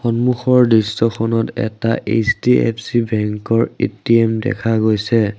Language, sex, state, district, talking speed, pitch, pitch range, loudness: Assamese, male, Assam, Sonitpur, 90 wpm, 115 Hz, 110-120 Hz, -16 LUFS